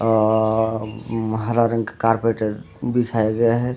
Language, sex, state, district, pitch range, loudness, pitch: Hindi, male, Bihar, Samastipur, 110-115 Hz, -21 LUFS, 115 Hz